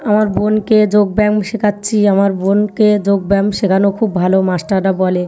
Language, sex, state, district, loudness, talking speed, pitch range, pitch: Bengali, female, West Bengal, North 24 Parganas, -14 LUFS, 180 wpm, 190-210 Hz, 200 Hz